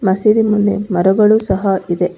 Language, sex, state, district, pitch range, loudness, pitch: Kannada, female, Karnataka, Bangalore, 190-210 Hz, -14 LUFS, 200 Hz